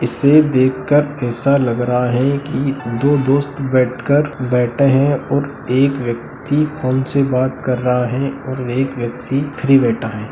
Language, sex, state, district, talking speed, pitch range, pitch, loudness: Hindi, male, Bihar, Sitamarhi, 165 wpm, 125-140 Hz, 130 Hz, -16 LUFS